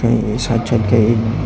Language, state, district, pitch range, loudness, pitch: Kokborok, Tripura, Dhalai, 110-115 Hz, -16 LUFS, 115 Hz